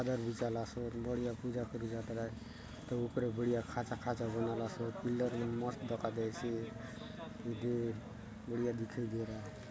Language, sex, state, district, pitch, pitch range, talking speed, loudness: Halbi, male, Chhattisgarh, Bastar, 115 Hz, 115-120 Hz, 150 wpm, -40 LUFS